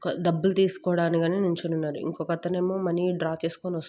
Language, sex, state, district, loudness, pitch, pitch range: Telugu, female, Andhra Pradesh, Guntur, -26 LUFS, 170 Hz, 165-180 Hz